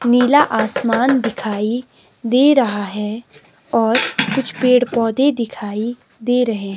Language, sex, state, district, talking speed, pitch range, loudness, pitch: Hindi, female, Himachal Pradesh, Shimla, 115 wpm, 220-255 Hz, -17 LUFS, 235 Hz